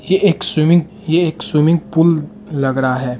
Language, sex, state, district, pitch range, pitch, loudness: Hindi, male, Bihar, Araria, 145-175 Hz, 165 Hz, -15 LUFS